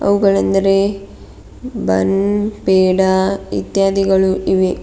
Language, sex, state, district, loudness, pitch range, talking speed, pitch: Kannada, female, Karnataka, Bidar, -15 LUFS, 190-200 Hz, 60 wpm, 195 Hz